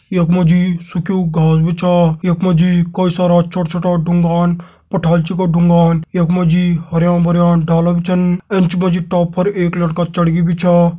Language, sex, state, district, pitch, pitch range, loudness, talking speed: Garhwali, male, Uttarakhand, Tehri Garhwal, 175 Hz, 170-180 Hz, -14 LUFS, 205 wpm